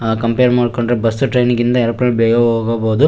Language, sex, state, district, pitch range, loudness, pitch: Kannada, male, Karnataka, Shimoga, 115-125 Hz, -14 LUFS, 120 Hz